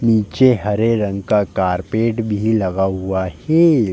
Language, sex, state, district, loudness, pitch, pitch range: Hindi, male, Uttar Pradesh, Jalaun, -17 LUFS, 105 Hz, 95-115 Hz